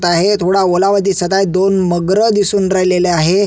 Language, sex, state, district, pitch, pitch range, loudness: Marathi, male, Maharashtra, Solapur, 190 Hz, 180-200 Hz, -13 LUFS